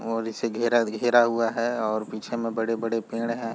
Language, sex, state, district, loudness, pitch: Hindi, male, Chhattisgarh, Raigarh, -25 LUFS, 115 Hz